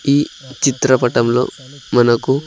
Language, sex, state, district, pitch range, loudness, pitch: Telugu, male, Andhra Pradesh, Sri Satya Sai, 125-140 Hz, -16 LUFS, 130 Hz